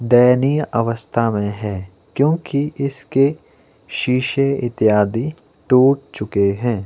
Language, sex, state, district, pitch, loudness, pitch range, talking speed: Hindi, male, Himachal Pradesh, Shimla, 125 Hz, -18 LUFS, 105-140 Hz, 95 wpm